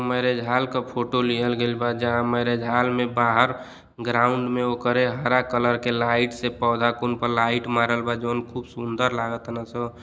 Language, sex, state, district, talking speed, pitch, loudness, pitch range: Bhojpuri, male, Uttar Pradesh, Deoria, 185 wpm, 120 Hz, -23 LUFS, 120-125 Hz